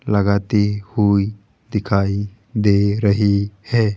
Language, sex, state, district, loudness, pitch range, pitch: Hindi, male, Rajasthan, Jaipur, -18 LUFS, 100-105 Hz, 105 Hz